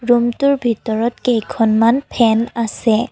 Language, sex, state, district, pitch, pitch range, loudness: Assamese, female, Assam, Kamrup Metropolitan, 235 Hz, 225-240 Hz, -16 LUFS